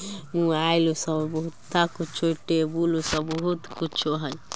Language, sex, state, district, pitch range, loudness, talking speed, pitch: Bajjika, female, Bihar, Vaishali, 155-170 Hz, -26 LUFS, 130 wpm, 160 Hz